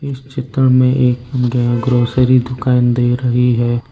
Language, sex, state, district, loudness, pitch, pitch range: Hindi, male, Arunachal Pradesh, Lower Dibang Valley, -14 LUFS, 125 Hz, 120-130 Hz